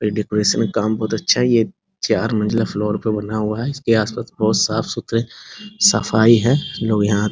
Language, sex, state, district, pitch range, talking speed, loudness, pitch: Hindi, male, Bihar, Muzaffarpur, 105-115 Hz, 190 wpm, -18 LUFS, 110 Hz